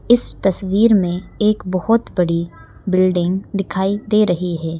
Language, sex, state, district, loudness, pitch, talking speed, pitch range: Hindi, female, Madhya Pradesh, Bhopal, -17 LUFS, 190 Hz, 140 wpm, 180-210 Hz